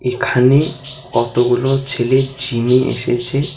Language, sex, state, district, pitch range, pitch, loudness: Bengali, male, West Bengal, Alipurduar, 120-135 Hz, 130 Hz, -15 LUFS